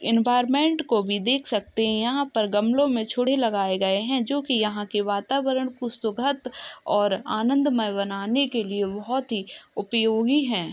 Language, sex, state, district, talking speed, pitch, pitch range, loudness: Hindi, male, Uttar Pradesh, Jalaun, 155 wpm, 230 Hz, 205-260 Hz, -24 LUFS